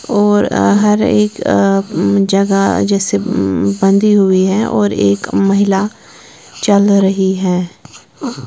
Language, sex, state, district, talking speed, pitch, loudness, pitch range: Hindi, female, Bihar, Patna, 115 wpm, 195 Hz, -13 LUFS, 185-205 Hz